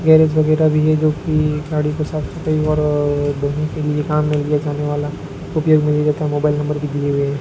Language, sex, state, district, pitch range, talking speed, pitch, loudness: Hindi, male, Rajasthan, Bikaner, 145-155 Hz, 225 wpm, 150 Hz, -18 LUFS